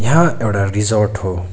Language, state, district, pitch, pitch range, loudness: Nepali, West Bengal, Darjeeling, 105 Hz, 100-115 Hz, -16 LUFS